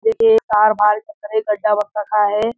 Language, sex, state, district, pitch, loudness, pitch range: Hindi, male, Uttarakhand, Uttarkashi, 215 Hz, -16 LUFS, 210-310 Hz